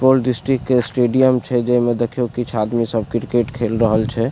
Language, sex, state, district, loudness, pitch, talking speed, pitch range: Maithili, male, Bihar, Supaul, -18 LUFS, 120 Hz, 210 wpm, 115-125 Hz